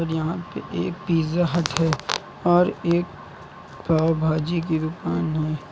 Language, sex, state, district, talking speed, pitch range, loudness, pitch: Hindi, male, Uttar Pradesh, Lucknow, 135 wpm, 155-170 Hz, -23 LUFS, 165 Hz